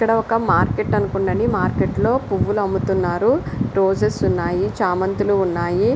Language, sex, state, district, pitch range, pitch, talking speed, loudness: Telugu, female, Andhra Pradesh, Visakhapatnam, 140-200 Hz, 185 Hz, 120 wpm, -19 LUFS